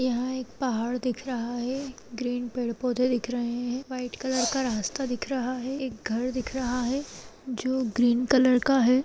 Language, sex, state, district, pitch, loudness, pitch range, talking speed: Hindi, female, Chhattisgarh, Kabirdham, 250 Hz, -28 LUFS, 245-260 Hz, 190 wpm